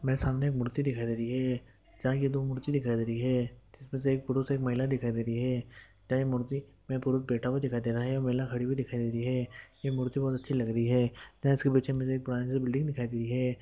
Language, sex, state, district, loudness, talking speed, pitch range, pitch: Hindi, male, Andhra Pradesh, Guntur, -31 LUFS, 275 wpm, 120-135 Hz, 130 Hz